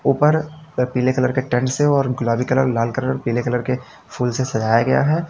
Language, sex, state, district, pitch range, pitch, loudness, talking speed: Hindi, male, Uttar Pradesh, Lalitpur, 120-135 Hz, 130 Hz, -19 LUFS, 215 wpm